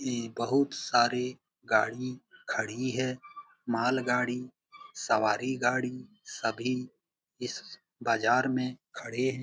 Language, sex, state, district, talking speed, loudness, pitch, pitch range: Hindi, male, Bihar, Jamui, 100 wpm, -30 LUFS, 125 Hz, 125-130 Hz